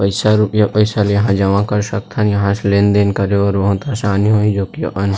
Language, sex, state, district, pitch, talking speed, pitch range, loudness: Chhattisgarhi, male, Chhattisgarh, Rajnandgaon, 100 Hz, 220 wpm, 100-105 Hz, -15 LUFS